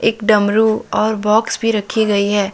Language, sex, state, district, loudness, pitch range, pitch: Hindi, male, Jharkhand, Deoghar, -15 LUFS, 210-220 Hz, 215 Hz